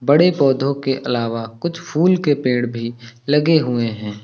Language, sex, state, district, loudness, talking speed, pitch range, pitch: Hindi, male, Uttar Pradesh, Lucknow, -18 LUFS, 170 wpm, 115-150 Hz, 135 Hz